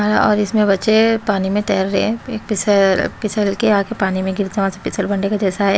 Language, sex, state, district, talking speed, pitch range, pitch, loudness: Hindi, female, Chhattisgarh, Raipur, 205 wpm, 195-215 Hz, 200 Hz, -17 LUFS